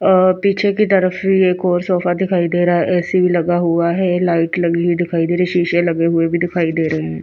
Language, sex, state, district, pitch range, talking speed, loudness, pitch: Hindi, female, Bihar, Patna, 170-185 Hz, 250 wpm, -16 LUFS, 175 Hz